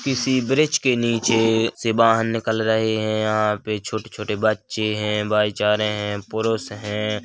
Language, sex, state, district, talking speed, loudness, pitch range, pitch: Hindi, male, Chhattisgarh, Korba, 155 wpm, -21 LUFS, 105-115 Hz, 110 Hz